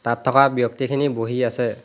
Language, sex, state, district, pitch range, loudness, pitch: Assamese, male, Assam, Hailakandi, 115-135 Hz, -20 LUFS, 125 Hz